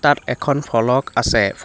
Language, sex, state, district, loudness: Assamese, male, Assam, Hailakandi, -18 LUFS